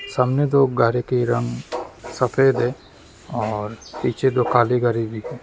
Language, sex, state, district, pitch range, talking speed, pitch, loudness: Hindi, male, West Bengal, Jalpaiguri, 115-130 Hz, 145 wpm, 120 Hz, -21 LUFS